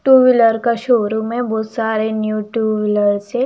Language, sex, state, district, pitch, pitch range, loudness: Hindi, female, Bihar, Katihar, 220 Hz, 215-240 Hz, -16 LUFS